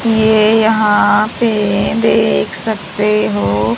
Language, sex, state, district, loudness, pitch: Hindi, female, Haryana, Charkhi Dadri, -13 LUFS, 205 Hz